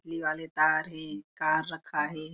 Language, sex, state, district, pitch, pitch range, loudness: Chhattisgarhi, female, Chhattisgarh, Korba, 155 Hz, 155-160 Hz, -29 LUFS